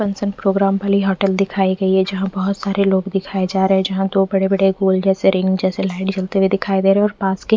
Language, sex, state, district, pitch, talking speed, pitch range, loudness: Hindi, female, Punjab, Fazilka, 195 Hz, 255 wpm, 190-195 Hz, -17 LUFS